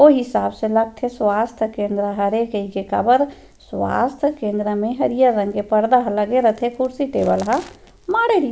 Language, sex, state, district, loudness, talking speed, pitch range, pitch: Chhattisgarhi, female, Chhattisgarh, Rajnandgaon, -19 LUFS, 175 wpm, 210-255 Hz, 225 Hz